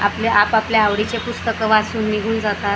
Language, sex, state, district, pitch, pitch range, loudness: Marathi, female, Maharashtra, Gondia, 215 Hz, 210-225 Hz, -18 LUFS